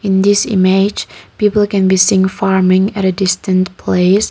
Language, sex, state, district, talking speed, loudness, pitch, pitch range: English, female, Nagaland, Kohima, 155 wpm, -13 LUFS, 190 Hz, 190-200 Hz